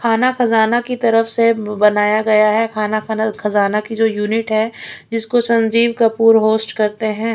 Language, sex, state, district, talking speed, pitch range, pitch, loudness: Hindi, female, Chhattisgarh, Raipur, 170 wpm, 215-230 Hz, 225 Hz, -15 LUFS